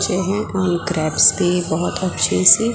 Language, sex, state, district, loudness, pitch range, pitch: Hindi, female, Gujarat, Gandhinagar, -16 LUFS, 165-190 Hz, 180 Hz